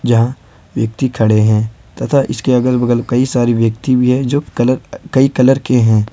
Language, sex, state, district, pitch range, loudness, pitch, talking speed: Hindi, male, Jharkhand, Ranchi, 115-130 Hz, -14 LUFS, 125 Hz, 185 wpm